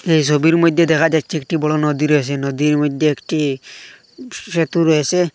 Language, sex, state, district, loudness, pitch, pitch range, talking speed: Bengali, male, Assam, Hailakandi, -16 LUFS, 155 Hz, 150-165 Hz, 155 wpm